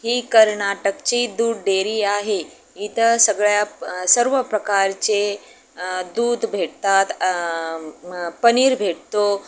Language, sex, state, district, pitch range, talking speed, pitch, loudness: Marathi, female, Maharashtra, Aurangabad, 195-230 Hz, 110 wpm, 205 Hz, -19 LUFS